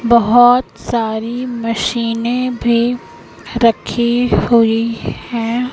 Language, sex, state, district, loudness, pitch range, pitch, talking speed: Hindi, female, Madhya Pradesh, Katni, -15 LUFS, 230-240 Hz, 235 Hz, 75 wpm